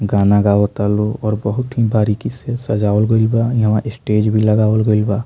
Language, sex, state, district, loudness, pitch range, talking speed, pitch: Bhojpuri, male, Bihar, Muzaffarpur, -16 LUFS, 105-115 Hz, 195 wpm, 105 Hz